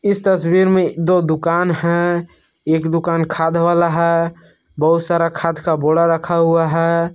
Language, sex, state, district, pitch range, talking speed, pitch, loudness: Hindi, male, Jharkhand, Palamu, 165-175 Hz, 160 wpm, 170 Hz, -16 LUFS